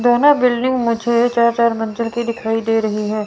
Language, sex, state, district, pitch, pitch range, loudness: Hindi, female, Chandigarh, Chandigarh, 235 Hz, 225-240 Hz, -16 LUFS